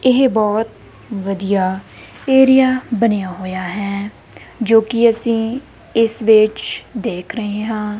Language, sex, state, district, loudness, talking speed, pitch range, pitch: Punjabi, female, Punjab, Kapurthala, -16 LUFS, 115 wpm, 200-230 Hz, 220 Hz